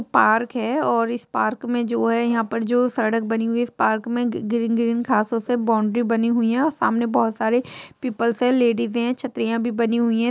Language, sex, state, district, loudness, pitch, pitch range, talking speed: Hindi, female, Jharkhand, Jamtara, -21 LUFS, 235 Hz, 230-240 Hz, 235 wpm